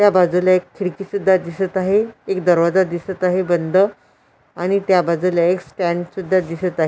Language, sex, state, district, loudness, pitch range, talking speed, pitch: Marathi, female, Maharashtra, Washim, -18 LUFS, 175-190 Hz, 175 wpm, 185 Hz